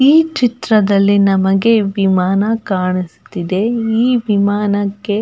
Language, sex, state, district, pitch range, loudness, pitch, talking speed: Kannada, female, Karnataka, Belgaum, 195-225 Hz, -14 LUFS, 205 Hz, 80 wpm